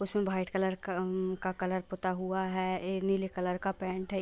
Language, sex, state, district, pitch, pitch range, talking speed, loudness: Hindi, female, Jharkhand, Sahebganj, 185 Hz, 185-190 Hz, 225 wpm, -33 LUFS